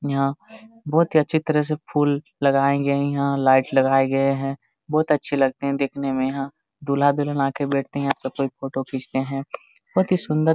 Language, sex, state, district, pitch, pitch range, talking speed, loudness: Hindi, male, Jharkhand, Jamtara, 140 Hz, 135-150 Hz, 210 wpm, -22 LUFS